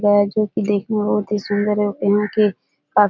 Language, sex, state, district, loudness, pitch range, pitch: Hindi, female, Bihar, Jahanabad, -19 LUFS, 205-210 Hz, 210 Hz